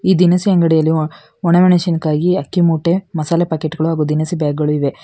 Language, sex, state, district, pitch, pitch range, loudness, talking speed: Kannada, female, Karnataka, Bangalore, 165 Hz, 155-175 Hz, -15 LUFS, 155 wpm